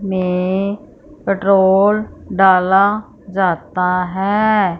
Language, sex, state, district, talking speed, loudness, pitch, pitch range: Hindi, female, Punjab, Fazilka, 60 wpm, -15 LUFS, 195 Hz, 185-205 Hz